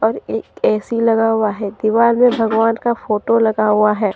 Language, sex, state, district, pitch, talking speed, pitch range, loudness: Hindi, female, Jharkhand, Deoghar, 225 Hz, 200 wpm, 215-230 Hz, -16 LUFS